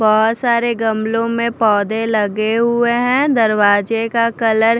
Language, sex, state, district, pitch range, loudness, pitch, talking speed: Hindi, female, Punjab, Fazilka, 215-235 Hz, -15 LUFS, 225 Hz, 150 wpm